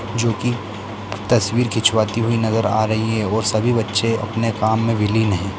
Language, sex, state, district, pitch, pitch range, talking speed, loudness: Hindi, male, Bihar, Lakhisarai, 110 Hz, 110-115 Hz, 180 wpm, -19 LUFS